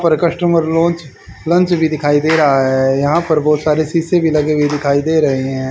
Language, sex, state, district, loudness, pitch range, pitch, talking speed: Hindi, male, Haryana, Rohtak, -14 LUFS, 145-165 Hz, 155 Hz, 220 wpm